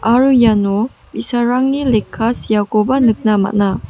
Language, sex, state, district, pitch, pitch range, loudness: Garo, female, Meghalaya, West Garo Hills, 225 Hz, 210-250 Hz, -14 LUFS